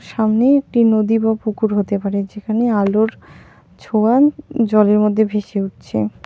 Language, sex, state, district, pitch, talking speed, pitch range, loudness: Bengali, female, West Bengal, Alipurduar, 215 Hz, 135 wpm, 205-225 Hz, -16 LUFS